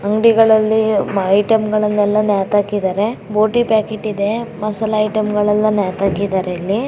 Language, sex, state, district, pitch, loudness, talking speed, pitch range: Kannada, female, Karnataka, Raichur, 210 Hz, -16 LUFS, 80 wpm, 200-215 Hz